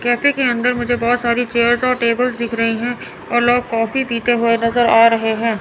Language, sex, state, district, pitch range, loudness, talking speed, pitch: Hindi, male, Chandigarh, Chandigarh, 230-245 Hz, -16 LUFS, 225 wpm, 240 Hz